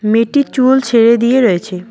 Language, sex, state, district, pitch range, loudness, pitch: Bengali, female, West Bengal, Cooch Behar, 220-255 Hz, -12 LUFS, 235 Hz